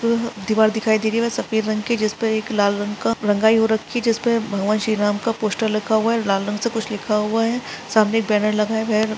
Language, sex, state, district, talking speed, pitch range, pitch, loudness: Hindi, female, Chhattisgarh, Sarguja, 270 wpm, 210-225 Hz, 220 Hz, -20 LUFS